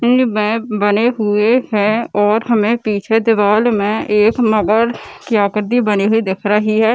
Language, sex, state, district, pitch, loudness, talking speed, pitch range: Hindi, female, Bihar, Gaya, 215 Hz, -14 LUFS, 155 wpm, 210-230 Hz